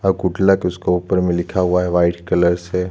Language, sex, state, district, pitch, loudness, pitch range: Hindi, male, Chhattisgarh, Jashpur, 90 Hz, -17 LUFS, 85-95 Hz